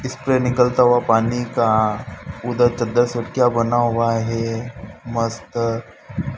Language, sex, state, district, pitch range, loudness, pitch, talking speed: Hindi, male, Madhya Pradesh, Dhar, 115-120 Hz, -19 LUFS, 115 Hz, 85 wpm